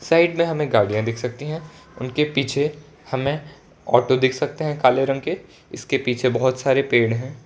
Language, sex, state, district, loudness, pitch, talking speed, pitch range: Hindi, male, Gujarat, Valsad, -21 LUFS, 135 Hz, 185 wpm, 130-150 Hz